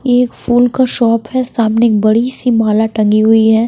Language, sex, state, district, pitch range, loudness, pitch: Hindi, female, Bihar, Patna, 220-245 Hz, -12 LUFS, 230 Hz